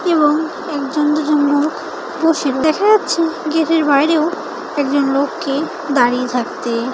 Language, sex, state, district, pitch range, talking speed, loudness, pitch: Bengali, female, West Bengal, Dakshin Dinajpur, 280-325 Hz, 105 wpm, -16 LUFS, 300 Hz